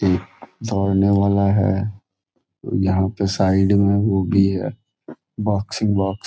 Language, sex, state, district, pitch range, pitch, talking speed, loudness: Hindi, male, Bihar, Gopalganj, 95-100 Hz, 100 Hz, 135 wpm, -19 LUFS